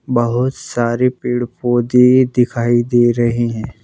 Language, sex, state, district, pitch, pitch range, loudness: Hindi, male, Madhya Pradesh, Bhopal, 120 Hz, 120-125 Hz, -15 LUFS